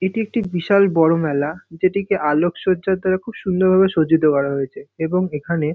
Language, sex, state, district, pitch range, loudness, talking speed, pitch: Bengali, male, West Bengal, North 24 Parganas, 160-190 Hz, -19 LUFS, 165 wpm, 175 Hz